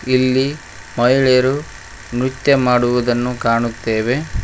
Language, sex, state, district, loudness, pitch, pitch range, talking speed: Kannada, male, Karnataka, Koppal, -16 LUFS, 125 Hz, 120-130 Hz, 70 wpm